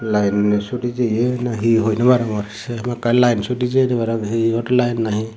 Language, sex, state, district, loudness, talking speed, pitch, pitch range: Chakma, male, Tripura, Dhalai, -18 LUFS, 210 wpm, 115 Hz, 110-125 Hz